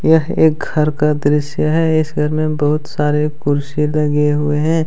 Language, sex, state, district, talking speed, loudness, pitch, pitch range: Hindi, male, Jharkhand, Deoghar, 185 wpm, -16 LUFS, 150 Hz, 150-155 Hz